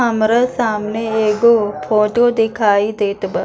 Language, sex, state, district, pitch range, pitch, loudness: Bhojpuri, female, Bihar, East Champaran, 210-235 Hz, 220 Hz, -15 LUFS